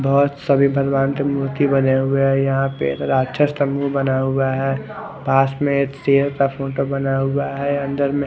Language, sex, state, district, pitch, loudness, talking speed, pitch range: Hindi, male, Odisha, Khordha, 140 Hz, -19 LUFS, 180 wpm, 135-140 Hz